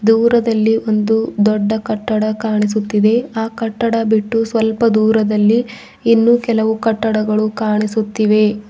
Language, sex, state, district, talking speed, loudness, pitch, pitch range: Kannada, female, Karnataka, Bidar, 95 wpm, -15 LUFS, 220 Hz, 215-225 Hz